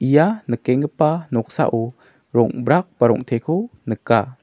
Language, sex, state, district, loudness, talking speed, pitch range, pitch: Garo, male, Meghalaya, South Garo Hills, -19 LUFS, 95 wpm, 115-155 Hz, 130 Hz